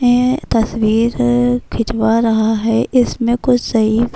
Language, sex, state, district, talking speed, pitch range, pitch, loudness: Urdu, female, Bihar, Kishanganj, 115 wpm, 225-245 Hz, 235 Hz, -15 LUFS